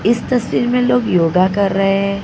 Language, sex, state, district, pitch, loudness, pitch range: Hindi, female, Maharashtra, Mumbai Suburban, 200 Hz, -15 LUFS, 195-240 Hz